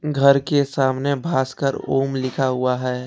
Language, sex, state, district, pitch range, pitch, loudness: Hindi, male, Jharkhand, Ranchi, 130-140 Hz, 135 Hz, -20 LUFS